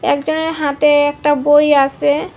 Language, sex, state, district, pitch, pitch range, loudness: Bengali, female, Assam, Hailakandi, 290 Hz, 285-295 Hz, -14 LUFS